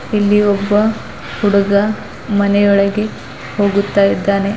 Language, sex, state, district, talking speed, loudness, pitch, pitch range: Kannada, female, Karnataka, Bidar, 80 wpm, -14 LUFS, 200 Hz, 200-205 Hz